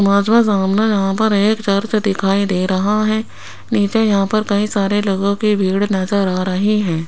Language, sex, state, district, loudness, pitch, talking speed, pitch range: Hindi, female, Rajasthan, Jaipur, -16 LUFS, 200 Hz, 195 wpm, 195-215 Hz